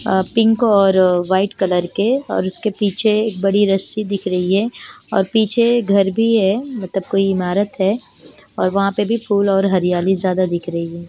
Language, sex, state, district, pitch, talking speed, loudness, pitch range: Hindi, female, Chandigarh, Chandigarh, 195 Hz, 185 wpm, -17 LUFS, 185-215 Hz